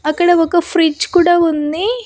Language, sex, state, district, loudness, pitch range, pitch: Telugu, female, Andhra Pradesh, Annamaya, -13 LUFS, 320-350 Hz, 345 Hz